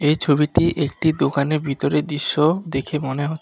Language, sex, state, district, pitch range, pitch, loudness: Bengali, male, West Bengal, Alipurduar, 145-155 Hz, 150 Hz, -20 LUFS